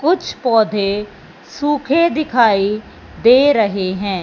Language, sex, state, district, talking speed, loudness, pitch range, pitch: Hindi, male, Punjab, Fazilka, 100 wpm, -15 LUFS, 205-290 Hz, 225 Hz